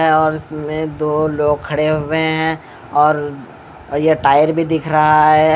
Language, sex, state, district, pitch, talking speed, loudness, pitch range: Hindi, male, Bihar, Katihar, 155 Hz, 150 wpm, -15 LUFS, 150-155 Hz